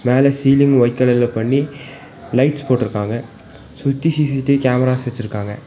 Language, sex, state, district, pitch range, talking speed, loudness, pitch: Tamil, female, Tamil Nadu, Nilgiris, 120-140 Hz, 115 wpm, -17 LUFS, 130 Hz